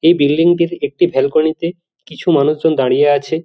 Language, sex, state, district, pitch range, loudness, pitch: Bengali, male, West Bengal, Jhargram, 145-170 Hz, -14 LUFS, 160 Hz